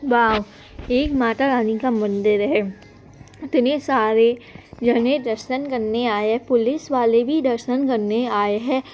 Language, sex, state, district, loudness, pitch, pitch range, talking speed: Hindi, female, Bihar, Muzaffarpur, -20 LUFS, 240 Hz, 220-260 Hz, 135 wpm